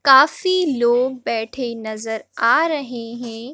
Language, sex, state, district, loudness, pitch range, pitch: Hindi, female, Madhya Pradesh, Bhopal, -19 LUFS, 230-275 Hz, 245 Hz